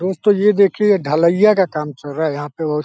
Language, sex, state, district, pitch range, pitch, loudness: Hindi, male, Uttar Pradesh, Deoria, 150-200 Hz, 170 Hz, -16 LUFS